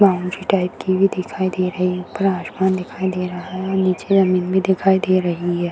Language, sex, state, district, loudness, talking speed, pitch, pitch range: Hindi, female, Bihar, Purnia, -19 LUFS, 220 wpm, 185 Hz, 180-190 Hz